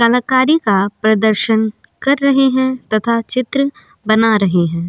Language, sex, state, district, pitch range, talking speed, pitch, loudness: Hindi, female, Goa, North and South Goa, 215-260 Hz, 135 wpm, 230 Hz, -14 LUFS